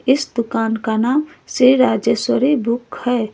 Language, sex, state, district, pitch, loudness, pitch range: Hindi, female, Jharkhand, Ranchi, 245 Hz, -17 LUFS, 230-265 Hz